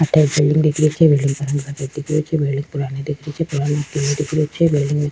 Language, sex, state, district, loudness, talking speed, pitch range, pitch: Rajasthani, female, Rajasthan, Churu, -18 LUFS, 290 wpm, 145-155 Hz, 150 Hz